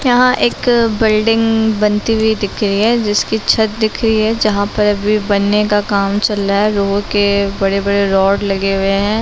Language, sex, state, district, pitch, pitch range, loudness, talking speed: Hindi, female, Maharashtra, Aurangabad, 210 Hz, 200-220 Hz, -14 LUFS, 195 wpm